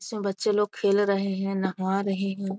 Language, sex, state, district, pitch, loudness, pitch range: Hindi, female, Bihar, Muzaffarpur, 195 Hz, -26 LUFS, 195-200 Hz